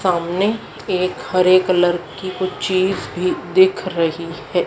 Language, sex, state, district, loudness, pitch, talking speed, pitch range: Hindi, female, Madhya Pradesh, Dhar, -18 LUFS, 185 Hz, 140 wpm, 175-195 Hz